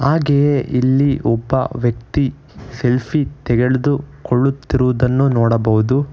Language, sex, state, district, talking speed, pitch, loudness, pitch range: Kannada, male, Karnataka, Bangalore, 70 wpm, 130 Hz, -17 LUFS, 125-140 Hz